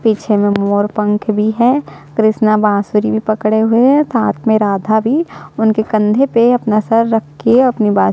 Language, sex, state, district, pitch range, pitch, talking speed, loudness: Hindi, female, Chhattisgarh, Sukma, 210-230 Hz, 220 Hz, 190 wpm, -13 LUFS